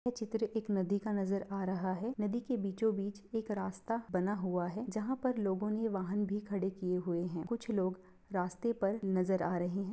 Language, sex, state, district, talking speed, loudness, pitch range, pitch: Hindi, female, Bihar, Purnia, 230 wpm, -36 LUFS, 185-220 Hz, 200 Hz